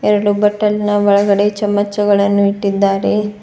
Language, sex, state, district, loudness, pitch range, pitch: Kannada, female, Karnataka, Bidar, -14 LUFS, 200-210 Hz, 205 Hz